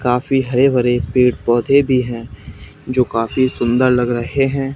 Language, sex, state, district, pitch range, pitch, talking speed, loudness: Hindi, male, Haryana, Charkhi Dadri, 120-130 Hz, 125 Hz, 165 wpm, -16 LUFS